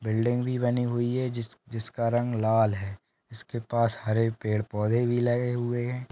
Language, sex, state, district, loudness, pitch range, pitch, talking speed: Hindi, male, Maharashtra, Solapur, -28 LUFS, 110-120 Hz, 115 Hz, 175 wpm